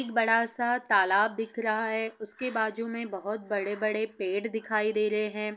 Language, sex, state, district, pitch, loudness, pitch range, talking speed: Hindi, female, Bihar, Saran, 220 Hz, -28 LUFS, 210-230 Hz, 185 wpm